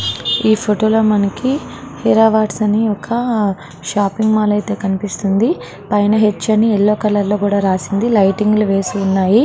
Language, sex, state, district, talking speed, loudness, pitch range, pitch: Telugu, female, Andhra Pradesh, Srikakulam, 140 wpm, -15 LUFS, 195-215 Hz, 210 Hz